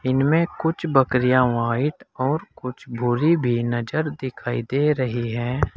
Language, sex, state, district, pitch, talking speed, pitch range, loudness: Hindi, male, Uttar Pradesh, Saharanpur, 130 Hz, 135 wpm, 120-150 Hz, -22 LUFS